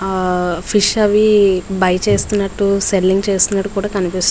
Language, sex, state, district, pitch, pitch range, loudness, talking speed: Telugu, female, Andhra Pradesh, Visakhapatnam, 195 Hz, 185-205 Hz, -15 LUFS, 125 wpm